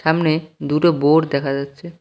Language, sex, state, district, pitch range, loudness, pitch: Bengali, male, West Bengal, Cooch Behar, 140-165 Hz, -18 LUFS, 155 Hz